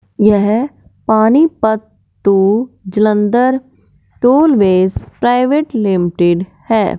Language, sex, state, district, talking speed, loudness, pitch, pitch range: Hindi, male, Punjab, Fazilka, 70 wpm, -13 LUFS, 220 Hz, 200-250 Hz